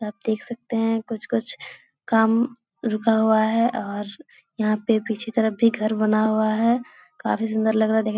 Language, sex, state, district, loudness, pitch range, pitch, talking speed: Hindi, female, Bihar, Jahanabad, -22 LUFS, 215-230 Hz, 220 Hz, 190 wpm